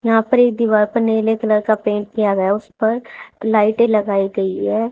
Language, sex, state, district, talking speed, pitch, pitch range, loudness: Hindi, female, Haryana, Charkhi Dadri, 205 wpm, 220 Hz, 210-225 Hz, -17 LUFS